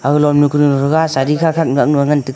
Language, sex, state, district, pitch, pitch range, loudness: Wancho, male, Arunachal Pradesh, Longding, 145 Hz, 140-150 Hz, -13 LUFS